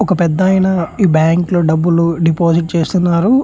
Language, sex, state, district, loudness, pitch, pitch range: Telugu, male, Andhra Pradesh, Chittoor, -13 LUFS, 170 Hz, 165-185 Hz